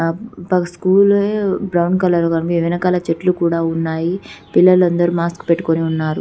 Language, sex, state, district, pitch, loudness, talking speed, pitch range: Telugu, female, Telangana, Karimnagar, 175 Hz, -16 LUFS, 115 wpm, 165-185 Hz